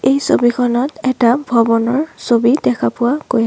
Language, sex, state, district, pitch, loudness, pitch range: Assamese, female, Assam, Sonitpur, 240 Hz, -15 LUFS, 230-265 Hz